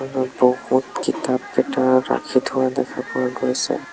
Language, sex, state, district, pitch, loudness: Assamese, male, Assam, Sonitpur, 130 Hz, -21 LUFS